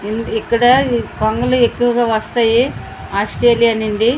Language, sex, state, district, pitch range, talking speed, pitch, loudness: Telugu, female, Andhra Pradesh, Srikakulam, 225-240 Hz, 115 wpm, 235 Hz, -15 LUFS